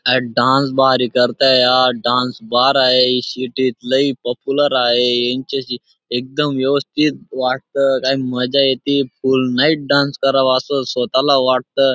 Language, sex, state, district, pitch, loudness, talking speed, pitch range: Marathi, male, Maharashtra, Dhule, 130 Hz, -16 LUFS, 130 wpm, 125-135 Hz